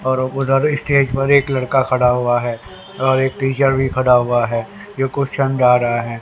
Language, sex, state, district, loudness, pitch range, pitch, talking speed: Hindi, male, Haryana, Rohtak, -16 LUFS, 120-135 Hz, 130 Hz, 200 wpm